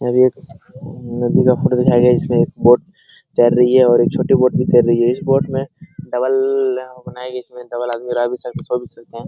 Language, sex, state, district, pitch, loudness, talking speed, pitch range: Hindi, male, Bihar, Araria, 125 Hz, -15 LUFS, 265 wpm, 120-140 Hz